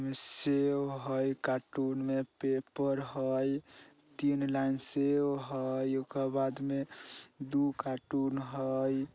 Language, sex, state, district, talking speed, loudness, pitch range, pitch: Bajjika, male, Bihar, Vaishali, 110 wpm, -33 LUFS, 135-140 Hz, 135 Hz